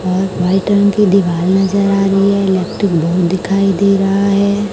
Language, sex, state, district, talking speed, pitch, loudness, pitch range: Hindi, male, Chhattisgarh, Raipur, 190 wpm, 195 Hz, -13 LUFS, 185-200 Hz